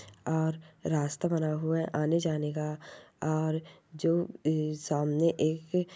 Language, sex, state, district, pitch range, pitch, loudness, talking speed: Hindi, female, Rajasthan, Churu, 150-160 Hz, 155 Hz, -31 LUFS, 130 wpm